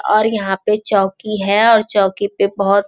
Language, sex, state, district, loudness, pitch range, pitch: Hindi, male, Bihar, Jamui, -15 LUFS, 200-215 Hz, 205 Hz